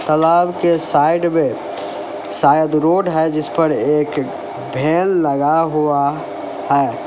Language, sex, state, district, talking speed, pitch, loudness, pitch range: Hindi, male, Uttar Pradesh, Lalitpur, 120 wpm, 155 Hz, -16 LUFS, 145-165 Hz